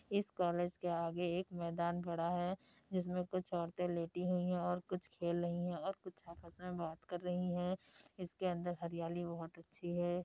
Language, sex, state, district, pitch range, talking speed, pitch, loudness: Hindi, female, Uttar Pradesh, Deoria, 170-180 Hz, 200 wpm, 175 Hz, -41 LUFS